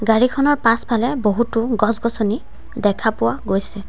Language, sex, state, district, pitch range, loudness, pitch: Assamese, female, Assam, Sonitpur, 210-235 Hz, -19 LUFS, 225 Hz